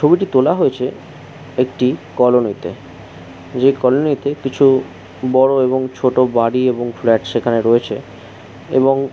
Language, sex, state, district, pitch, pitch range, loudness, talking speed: Bengali, male, West Bengal, Jhargram, 130 Hz, 115-135 Hz, -16 LUFS, 130 wpm